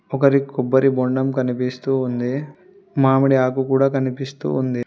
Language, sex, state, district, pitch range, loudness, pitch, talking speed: Telugu, female, Telangana, Hyderabad, 130-135 Hz, -19 LUFS, 135 Hz, 125 wpm